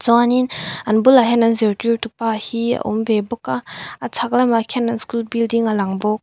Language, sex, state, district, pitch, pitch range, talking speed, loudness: Mizo, female, Mizoram, Aizawl, 230 Hz, 220-235 Hz, 210 wpm, -18 LUFS